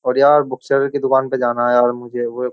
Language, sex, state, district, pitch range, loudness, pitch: Hindi, male, Uttar Pradesh, Jyotiba Phule Nagar, 120-135 Hz, -16 LUFS, 125 Hz